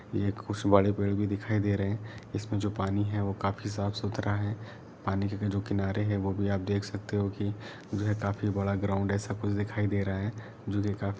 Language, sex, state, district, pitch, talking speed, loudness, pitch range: Hindi, male, Jharkhand, Sahebganj, 100 Hz, 230 wpm, -31 LUFS, 100-105 Hz